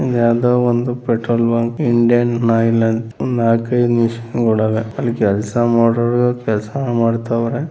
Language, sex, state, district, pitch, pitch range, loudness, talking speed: Kannada, male, Karnataka, Mysore, 115 Hz, 115-120 Hz, -16 LUFS, 130 wpm